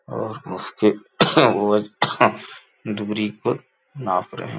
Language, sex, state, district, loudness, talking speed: Hindi, male, Uttar Pradesh, Gorakhpur, -21 LUFS, 90 wpm